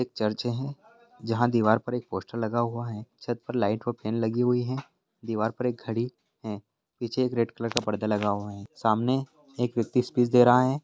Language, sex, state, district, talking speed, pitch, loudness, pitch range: Hindi, male, Bihar, Jahanabad, 220 wpm, 120 Hz, -27 LUFS, 110-125 Hz